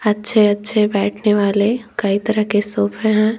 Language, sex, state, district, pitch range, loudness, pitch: Hindi, female, Bihar, West Champaran, 205-215 Hz, -17 LUFS, 210 Hz